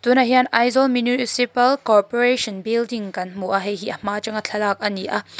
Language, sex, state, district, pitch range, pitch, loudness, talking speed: Mizo, female, Mizoram, Aizawl, 205-245 Hz, 230 Hz, -20 LUFS, 175 wpm